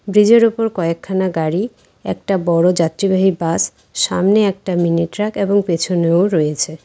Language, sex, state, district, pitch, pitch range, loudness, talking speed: Bengali, female, West Bengal, Cooch Behar, 185 Hz, 170-200 Hz, -16 LUFS, 130 wpm